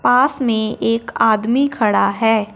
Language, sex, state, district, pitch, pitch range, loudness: Hindi, female, Punjab, Fazilka, 225 Hz, 220-250 Hz, -16 LUFS